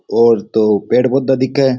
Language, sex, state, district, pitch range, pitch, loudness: Rajasthani, male, Rajasthan, Nagaur, 110-135 Hz, 125 Hz, -14 LUFS